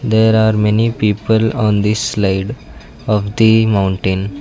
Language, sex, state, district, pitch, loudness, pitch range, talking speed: English, male, Karnataka, Bangalore, 110 Hz, -14 LUFS, 100-110 Hz, 135 wpm